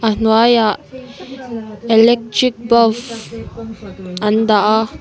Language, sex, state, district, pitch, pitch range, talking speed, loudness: Mizo, female, Mizoram, Aizawl, 225 Hz, 215-235 Hz, 85 wpm, -14 LUFS